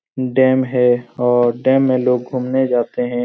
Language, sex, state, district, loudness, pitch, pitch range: Hindi, male, Bihar, Supaul, -16 LUFS, 125 Hz, 120-130 Hz